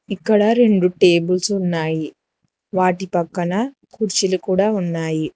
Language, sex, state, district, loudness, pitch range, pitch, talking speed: Telugu, female, Telangana, Hyderabad, -18 LUFS, 175-205 Hz, 185 Hz, 100 wpm